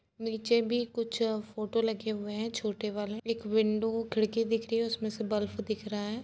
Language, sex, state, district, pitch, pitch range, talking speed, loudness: Hindi, female, Uttar Pradesh, Etah, 220 Hz, 215-230 Hz, 210 wpm, -32 LUFS